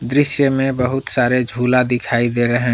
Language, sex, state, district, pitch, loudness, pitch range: Hindi, male, Jharkhand, Palamu, 125 Hz, -16 LUFS, 120-135 Hz